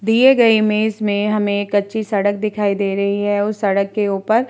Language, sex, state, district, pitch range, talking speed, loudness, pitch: Hindi, female, Bihar, Vaishali, 200-215 Hz, 215 wpm, -17 LUFS, 205 Hz